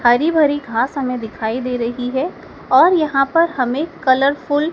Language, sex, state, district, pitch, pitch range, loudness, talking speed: Hindi, female, Madhya Pradesh, Dhar, 270 Hz, 245-305 Hz, -17 LUFS, 165 wpm